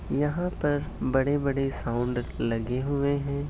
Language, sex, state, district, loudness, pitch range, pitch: Hindi, male, Uttar Pradesh, Hamirpur, -28 LUFS, 125-145 Hz, 140 Hz